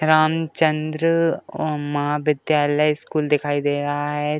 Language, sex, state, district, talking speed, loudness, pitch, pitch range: Hindi, male, Uttar Pradesh, Deoria, 110 wpm, -21 LUFS, 150 Hz, 145-155 Hz